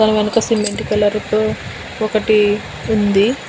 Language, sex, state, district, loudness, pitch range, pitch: Telugu, female, Telangana, Hyderabad, -16 LUFS, 210-220 Hz, 215 Hz